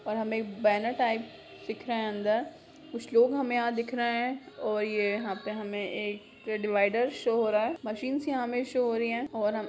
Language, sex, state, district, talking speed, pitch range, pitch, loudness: Hindi, female, Bihar, Begusarai, 215 wpm, 210-245 Hz, 230 Hz, -30 LUFS